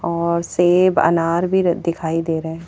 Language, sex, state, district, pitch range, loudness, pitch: Hindi, female, Haryana, Charkhi Dadri, 165-175 Hz, -18 LUFS, 170 Hz